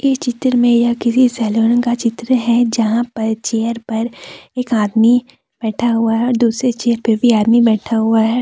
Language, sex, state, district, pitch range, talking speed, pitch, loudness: Hindi, female, Jharkhand, Deoghar, 225-240 Hz, 185 wpm, 235 Hz, -15 LUFS